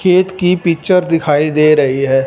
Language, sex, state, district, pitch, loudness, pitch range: Hindi, male, Punjab, Fazilka, 165 Hz, -12 LUFS, 145-180 Hz